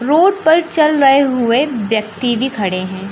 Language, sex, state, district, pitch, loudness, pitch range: Hindi, male, Madhya Pradesh, Katni, 260 Hz, -14 LUFS, 215-305 Hz